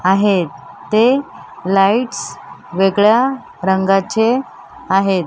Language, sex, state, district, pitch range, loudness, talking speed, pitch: Marathi, female, Maharashtra, Mumbai Suburban, 190-225 Hz, -15 LUFS, 70 wpm, 195 Hz